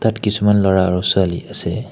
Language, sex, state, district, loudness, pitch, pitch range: Assamese, male, Assam, Hailakandi, -16 LUFS, 95 Hz, 95-105 Hz